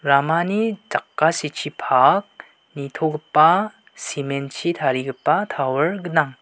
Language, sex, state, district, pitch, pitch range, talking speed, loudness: Garo, male, Meghalaya, West Garo Hills, 155 Hz, 140-170 Hz, 65 wpm, -20 LUFS